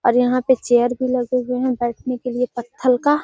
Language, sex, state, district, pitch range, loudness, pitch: Magahi, female, Bihar, Gaya, 245-255 Hz, -19 LUFS, 250 Hz